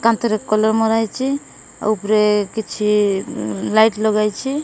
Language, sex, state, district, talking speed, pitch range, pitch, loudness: Odia, female, Odisha, Malkangiri, 105 wpm, 210-225 Hz, 215 Hz, -18 LUFS